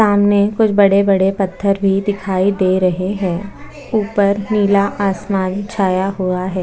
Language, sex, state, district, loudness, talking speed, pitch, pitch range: Hindi, female, Chhattisgarh, Bastar, -16 LUFS, 125 wpm, 195 Hz, 190-205 Hz